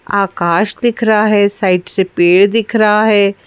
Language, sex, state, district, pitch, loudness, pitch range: Hindi, female, Madhya Pradesh, Bhopal, 205 Hz, -12 LUFS, 190-215 Hz